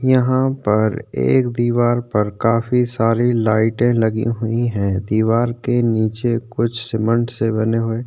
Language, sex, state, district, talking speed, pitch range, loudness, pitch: Hindi, male, Chhattisgarh, Korba, 140 wpm, 110-120 Hz, -18 LUFS, 115 Hz